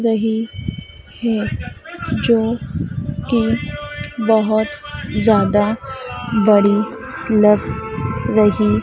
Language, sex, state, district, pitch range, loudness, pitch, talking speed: Hindi, female, Madhya Pradesh, Dhar, 200-225 Hz, -18 LUFS, 215 Hz, 70 wpm